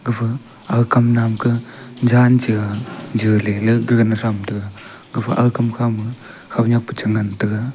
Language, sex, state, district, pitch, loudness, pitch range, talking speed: Wancho, male, Arunachal Pradesh, Longding, 115 Hz, -18 LUFS, 110-120 Hz, 140 wpm